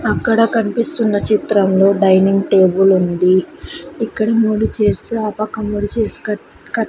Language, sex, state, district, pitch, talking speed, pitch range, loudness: Telugu, female, Andhra Pradesh, Sri Satya Sai, 210 Hz, 120 wpm, 195-220 Hz, -15 LUFS